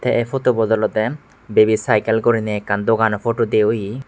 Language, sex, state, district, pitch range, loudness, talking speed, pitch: Chakma, male, Tripura, West Tripura, 110-115 Hz, -18 LUFS, 190 wpm, 110 Hz